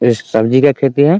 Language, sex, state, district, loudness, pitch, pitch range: Hindi, male, Bihar, Muzaffarpur, -12 LUFS, 135 Hz, 120-145 Hz